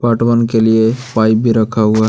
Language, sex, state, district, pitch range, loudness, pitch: Hindi, male, Jharkhand, Deoghar, 110-115 Hz, -13 LUFS, 110 Hz